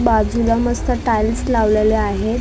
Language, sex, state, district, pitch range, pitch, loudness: Marathi, female, Maharashtra, Mumbai Suburban, 215-240 Hz, 225 Hz, -17 LUFS